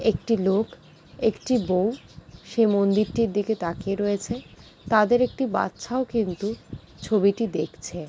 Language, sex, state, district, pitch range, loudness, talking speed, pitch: Bengali, female, West Bengal, Jalpaiguri, 195-230 Hz, -24 LUFS, 120 wpm, 215 Hz